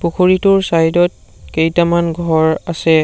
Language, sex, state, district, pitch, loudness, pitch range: Assamese, male, Assam, Sonitpur, 170 Hz, -14 LUFS, 160-175 Hz